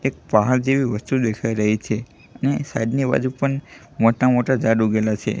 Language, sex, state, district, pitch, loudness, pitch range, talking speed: Gujarati, male, Gujarat, Gandhinagar, 125 Hz, -20 LUFS, 110-130 Hz, 190 wpm